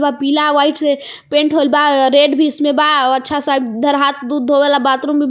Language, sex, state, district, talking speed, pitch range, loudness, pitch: Bhojpuri, female, Jharkhand, Palamu, 215 wpm, 280-295 Hz, -13 LUFS, 285 Hz